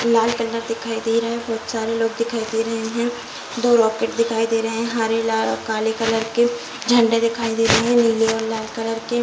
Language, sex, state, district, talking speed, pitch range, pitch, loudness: Hindi, female, Bihar, Saharsa, 260 wpm, 225-230 Hz, 225 Hz, -20 LUFS